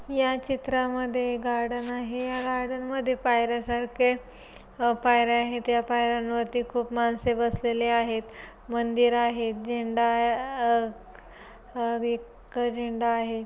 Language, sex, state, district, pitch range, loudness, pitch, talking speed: Marathi, female, Maharashtra, Pune, 235-250 Hz, -27 LUFS, 240 Hz, 110 wpm